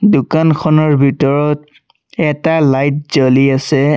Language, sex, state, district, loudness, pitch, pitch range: Assamese, male, Assam, Sonitpur, -13 LUFS, 145 Hz, 140-155 Hz